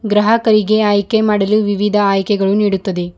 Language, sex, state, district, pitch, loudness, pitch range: Kannada, female, Karnataka, Bidar, 205 Hz, -14 LUFS, 200-215 Hz